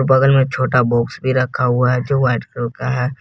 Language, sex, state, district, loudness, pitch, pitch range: Hindi, male, Jharkhand, Garhwa, -17 LUFS, 130 Hz, 125-130 Hz